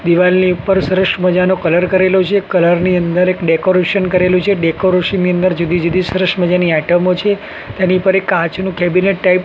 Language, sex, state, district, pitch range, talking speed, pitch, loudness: Gujarati, male, Gujarat, Gandhinagar, 175-190 Hz, 190 wpm, 180 Hz, -13 LUFS